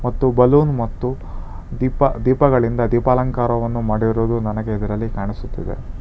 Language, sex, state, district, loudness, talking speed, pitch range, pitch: Kannada, male, Karnataka, Bangalore, -19 LUFS, 100 wpm, 110-125 Hz, 115 Hz